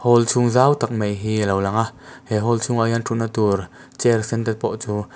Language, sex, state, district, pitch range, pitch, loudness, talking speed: Mizo, male, Mizoram, Aizawl, 105-120 Hz, 115 Hz, -20 LUFS, 255 wpm